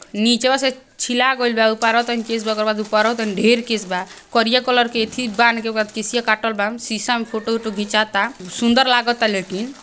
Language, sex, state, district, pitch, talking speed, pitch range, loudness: Bhojpuri, female, Bihar, Gopalganj, 225 Hz, 205 wpm, 215-240 Hz, -18 LUFS